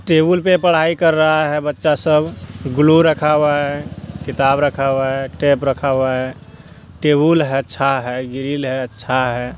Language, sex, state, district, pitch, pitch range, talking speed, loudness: Hindi, male, Bihar, Purnia, 145 Hz, 135-155 Hz, 145 wpm, -16 LUFS